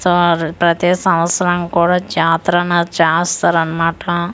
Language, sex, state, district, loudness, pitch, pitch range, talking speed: Telugu, female, Andhra Pradesh, Manyam, -15 LUFS, 175 Hz, 165-175 Hz, 85 wpm